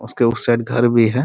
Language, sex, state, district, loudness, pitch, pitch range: Hindi, male, Bihar, Muzaffarpur, -15 LUFS, 120 Hz, 115-120 Hz